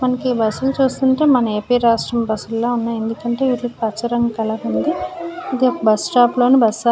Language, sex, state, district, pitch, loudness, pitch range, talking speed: Telugu, female, Andhra Pradesh, Srikakulam, 240 Hz, -18 LUFS, 225-255 Hz, 200 wpm